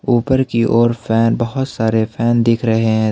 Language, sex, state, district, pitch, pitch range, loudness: Hindi, male, Jharkhand, Ranchi, 115 Hz, 110-120 Hz, -15 LUFS